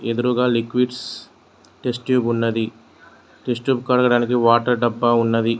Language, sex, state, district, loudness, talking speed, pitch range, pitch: Telugu, male, Telangana, Mahabubabad, -19 LUFS, 120 wpm, 115-125 Hz, 120 Hz